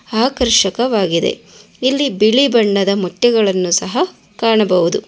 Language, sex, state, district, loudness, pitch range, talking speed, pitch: Kannada, female, Karnataka, Bangalore, -15 LUFS, 195-245 Hz, 85 wpm, 220 Hz